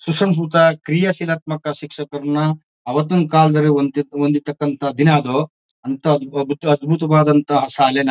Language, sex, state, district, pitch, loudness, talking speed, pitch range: Kannada, male, Karnataka, Mysore, 150 Hz, -17 LUFS, 95 wpm, 145-160 Hz